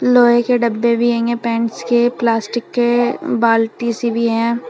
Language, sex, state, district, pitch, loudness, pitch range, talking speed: Hindi, female, Uttar Pradesh, Shamli, 235 Hz, -16 LUFS, 230-240 Hz, 155 wpm